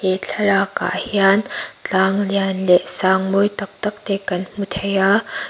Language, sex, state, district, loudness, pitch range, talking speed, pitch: Mizo, female, Mizoram, Aizawl, -19 LUFS, 190-205 Hz, 175 wpm, 195 Hz